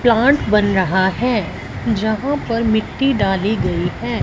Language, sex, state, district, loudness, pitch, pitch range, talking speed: Hindi, female, Punjab, Fazilka, -17 LUFS, 220 Hz, 200-240 Hz, 140 wpm